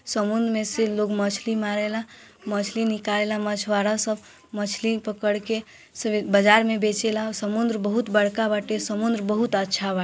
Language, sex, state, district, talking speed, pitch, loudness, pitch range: Bhojpuri, female, Bihar, East Champaran, 155 wpm, 215 Hz, -24 LUFS, 205-225 Hz